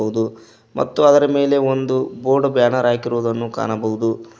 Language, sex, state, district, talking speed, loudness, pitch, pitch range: Kannada, male, Karnataka, Koppal, 120 wpm, -18 LUFS, 120 Hz, 110-135 Hz